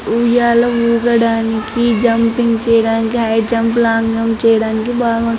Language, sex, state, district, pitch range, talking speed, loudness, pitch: Telugu, female, Andhra Pradesh, Anantapur, 225-235 Hz, 125 wpm, -14 LUFS, 230 Hz